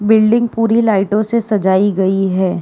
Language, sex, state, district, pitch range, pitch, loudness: Hindi, female, Uttar Pradesh, Jyotiba Phule Nagar, 190-225 Hz, 210 Hz, -14 LUFS